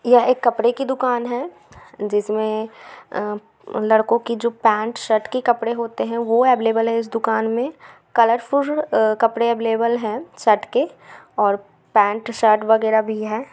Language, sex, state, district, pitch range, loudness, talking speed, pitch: Hindi, female, Bihar, Gaya, 220-240 Hz, -19 LUFS, 165 wpm, 230 Hz